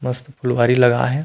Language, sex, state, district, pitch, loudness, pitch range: Chhattisgarhi, male, Chhattisgarh, Rajnandgaon, 125 Hz, -17 LUFS, 125-130 Hz